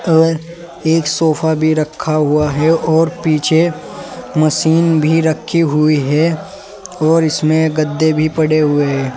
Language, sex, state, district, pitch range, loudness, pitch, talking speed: Hindi, male, Uttar Pradesh, Saharanpur, 155-165 Hz, -14 LUFS, 160 Hz, 135 wpm